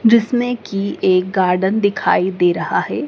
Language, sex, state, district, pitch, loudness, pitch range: Hindi, female, Madhya Pradesh, Dhar, 195 Hz, -17 LUFS, 185-225 Hz